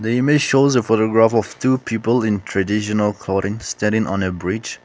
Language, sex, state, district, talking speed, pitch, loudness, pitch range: English, male, Nagaland, Kohima, 175 wpm, 110 Hz, -18 LUFS, 105-120 Hz